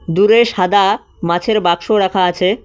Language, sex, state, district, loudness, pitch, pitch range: Bengali, male, West Bengal, Cooch Behar, -14 LUFS, 195 Hz, 180-215 Hz